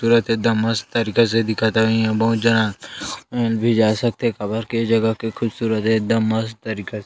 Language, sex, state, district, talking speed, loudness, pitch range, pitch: Chhattisgarhi, male, Chhattisgarh, Sarguja, 205 wpm, -19 LUFS, 110-115 Hz, 115 Hz